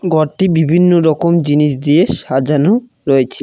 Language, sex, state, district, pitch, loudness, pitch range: Bengali, male, West Bengal, Cooch Behar, 155 Hz, -13 LUFS, 145-175 Hz